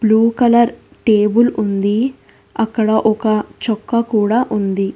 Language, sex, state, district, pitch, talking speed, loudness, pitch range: Telugu, female, Telangana, Hyderabad, 220 Hz, 110 wpm, -16 LUFS, 215-235 Hz